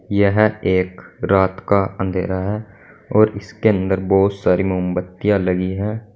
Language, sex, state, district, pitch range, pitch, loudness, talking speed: Hindi, male, Uttar Pradesh, Saharanpur, 95-105 Hz, 95 Hz, -18 LUFS, 135 wpm